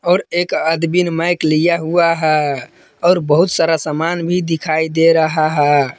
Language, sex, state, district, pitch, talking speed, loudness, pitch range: Hindi, male, Jharkhand, Palamu, 165 Hz, 170 wpm, -15 LUFS, 155-170 Hz